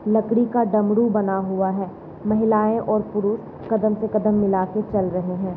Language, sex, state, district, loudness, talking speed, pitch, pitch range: Hindi, female, Bihar, East Champaran, -21 LUFS, 185 wpm, 210 Hz, 195-220 Hz